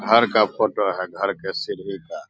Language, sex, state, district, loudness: Hindi, male, Bihar, Begusarai, -22 LUFS